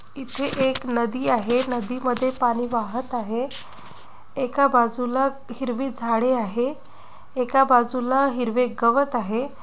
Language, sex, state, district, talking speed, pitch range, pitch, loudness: Marathi, female, Maharashtra, Nagpur, 110 wpm, 240-265 Hz, 250 Hz, -23 LUFS